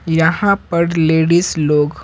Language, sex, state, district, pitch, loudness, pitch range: Hindi, male, Bihar, Patna, 165 Hz, -14 LUFS, 160-170 Hz